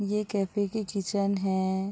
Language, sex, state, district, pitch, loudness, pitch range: Hindi, female, Chhattisgarh, Bilaspur, 200 Hz, -29 LUFS, 195-205 Hz